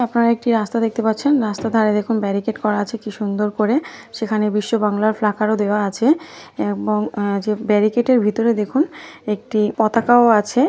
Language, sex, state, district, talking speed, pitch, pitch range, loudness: Bengali, female, West Bengal, North 24 Parganas, 165 wpm, 215 Hz, 210-235 Hz, -18 LUFS